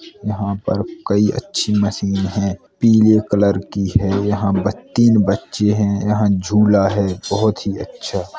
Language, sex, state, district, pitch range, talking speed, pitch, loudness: Hindi, male, Uttar Pradesh, Hamirpur, 100-105 Hz, 150 wpm, 100 Hz, -17 LUFS